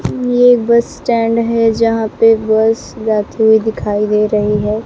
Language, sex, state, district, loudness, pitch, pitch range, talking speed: Hindi, female, Maharashtra, Mumbai Suburban, -13 LUFS, 225 Hz, 215-230 Hz, 160 wpm